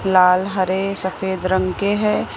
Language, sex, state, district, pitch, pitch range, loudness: Hindi, female, Maharashtra, Mumbai Suburban, 190 Hz, 185-195 Hz, -19 LUFS